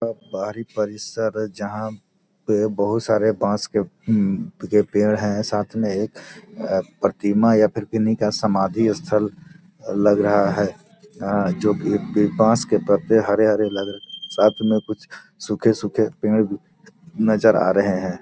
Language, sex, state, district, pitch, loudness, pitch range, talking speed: Hindi, male, Bihar, Gopalganj, 105 Hz, -20 LUFS, 105-110 Hz, 130 wpm